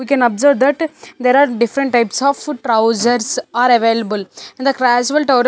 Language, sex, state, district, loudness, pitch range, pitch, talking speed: English, female, Chandigarh, Chandigarh, -15 LUFS, 235-275 Hz, 250 Hz, 175 wpm